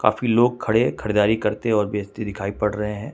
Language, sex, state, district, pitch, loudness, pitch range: Hindi, male, Jharkhand, Ranchi, 105 Hz, -21 LUFS, 105-110 Hz